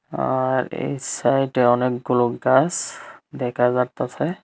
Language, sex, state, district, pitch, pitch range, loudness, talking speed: Bengali, male, Tripura, Unakoti, 125 Hz, 125-135 Hz, -21 LUFS, 110 wpm